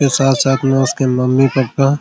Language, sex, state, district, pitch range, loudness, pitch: Hindi, male, Jharkhand, Jamtara, 130-135 Hz, -14 LUFS, 135 Hz